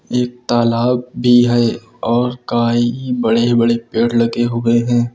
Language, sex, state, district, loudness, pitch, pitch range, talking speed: Hindi, male, Uttar Pradesh, Lucknow, -15 LUFS, 120 Hz, 115-120 Hz, 140 wpm